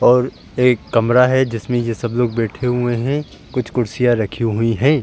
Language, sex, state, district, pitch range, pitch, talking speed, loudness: Hindi, male, Uttar Pradesh, Jalaun, 115-125 Hz, 120 Hz, 190 wpm, -18 LUFS